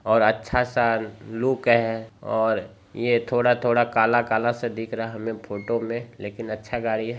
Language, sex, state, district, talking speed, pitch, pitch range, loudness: Hindi, male, Bihar, Jamui, 185 wpm, 115 Hz, 110-120 Hz, -24 LUFS